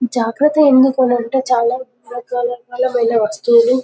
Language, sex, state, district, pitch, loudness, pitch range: Telugu, female, Telangana, Karimnagar, 245 Hz, -15 LUFS, 240-255 Hz